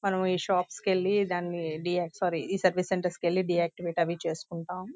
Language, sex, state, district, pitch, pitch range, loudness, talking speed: Telugu, female, Andhra Pradesh, Visakhapatnam, 180 Hz, 170-185 Hz, -29 LUFS, 205 wpm